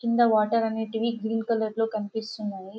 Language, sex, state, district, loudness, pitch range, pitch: Telugu, female, Telangana, Karimnagar, -26 LUFS, 215-230 Hz, 220 Hz